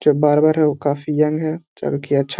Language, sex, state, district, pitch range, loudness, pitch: Hindi, male, Bihar, Jahanabad, 145-155 Hz, -18 LUFS, 150 Hz